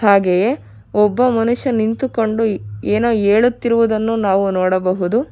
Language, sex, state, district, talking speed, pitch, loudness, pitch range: Kannada, female, Karnataka, Bangalore, 90 wpm, 220 Hz, -16 LUFS, 185-230 Hz